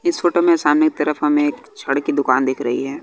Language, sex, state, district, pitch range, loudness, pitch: Hindi, male, Bihar, West Champaran, 145-165 Hz, -18 LUFS, 150 Hz